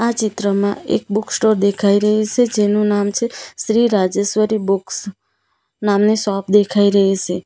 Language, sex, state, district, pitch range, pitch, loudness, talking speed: Gujarati, female, Gujarat, Valsad, 200-215 Hz, 205 Hz, -16 LUFS, 145 wpm